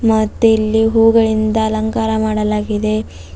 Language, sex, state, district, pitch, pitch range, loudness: Kannada, female, Karnataka, Bidar, 220 Hz, 215-225 Hz, -15 LUFS